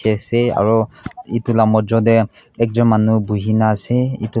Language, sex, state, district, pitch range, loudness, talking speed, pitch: Nagamese, male, Nagaland, Kohima, 110-115 Hz, -16 LUFS, 150 wpm, 110 Hz